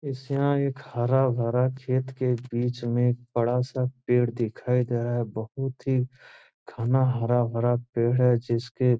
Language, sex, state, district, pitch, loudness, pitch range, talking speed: Hindi, male, Bihar, Gopalganj, 125 Hz, -26 LUFS, 120-130 Hz, 155 wpm